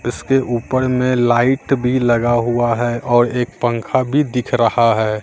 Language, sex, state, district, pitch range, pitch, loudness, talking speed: Hindi, male, Bihar, Katihar, 120-130 Hz, 120 Hz, -16 LUFS, 170 wpm